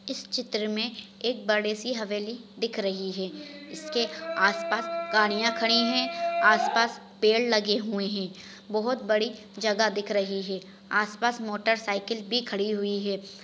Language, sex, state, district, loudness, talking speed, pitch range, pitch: Hindi, female, Maharashtra, Solapur, -27 LUFS, 155 wpm, 200-230 Hz, 215 Hz